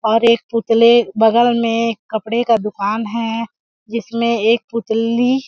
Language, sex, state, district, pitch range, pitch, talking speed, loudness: Hindi, female, Chhattisgarh, Balrampur, 225-235 Hz, 230 Hz, 130 wpm, -16 LUFS